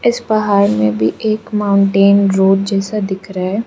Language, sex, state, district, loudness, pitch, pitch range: Hindi, female, Arunachal Pradesh, Lower Dibang Valley, -14 LUFS, 200 Hz, 190-215 Hz